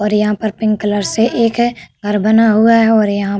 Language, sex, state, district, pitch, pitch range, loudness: Hindi, female, Uttar Pradesh, Budaun, 215 Hz, 205-225 Hz, -13 LUFS